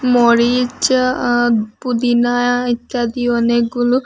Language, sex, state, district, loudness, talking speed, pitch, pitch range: Bengali, female, Assam, Hailakandi, -15 LUFS, 90 wpm, 245 Hz, 240-250 Hz